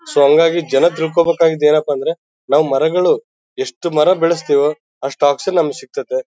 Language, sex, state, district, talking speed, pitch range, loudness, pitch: Kannada, male, Karnataka, Bellary, 145 wpm, 150-195 Hz, -15 LUFS, 165 Hz